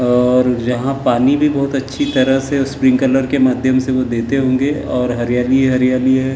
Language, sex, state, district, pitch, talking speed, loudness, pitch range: Hindi, male, Maharashtra, Gondia, 130 Hz, 200 wpm, -15 LUFS, 125-135 Hz